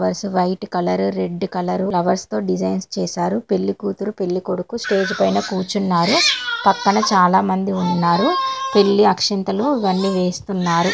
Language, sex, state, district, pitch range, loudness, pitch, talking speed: Telugu, female, Telangana, Karimnagar, 175-200 Hz, -18 LUFS, 190 Hz, 120 wpm